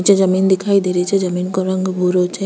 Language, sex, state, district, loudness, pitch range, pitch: Rajasthani, female, Rajasthan, Churu, -16 LUFS, 180-195 Hz, 185 Hz